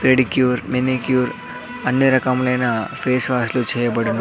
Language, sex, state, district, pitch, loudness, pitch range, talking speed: Telugu, male, Andhra Pradesh, Sri Satya Sai, 125 Hz, -19 LUFS, 120-130 Hz, 115 wpm